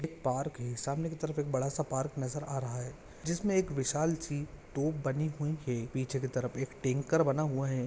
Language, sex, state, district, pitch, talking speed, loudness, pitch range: Hindi, male, Maharashtra, Pune, 140 Hz, 230 wpm, -34 LUFS, 130-155 Hz